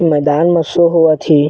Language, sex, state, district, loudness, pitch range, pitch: Chhattisgarhi, male, Chhattisgarh, Bilaspur, -12 LUFS, 150-170 Hz, 160 Hz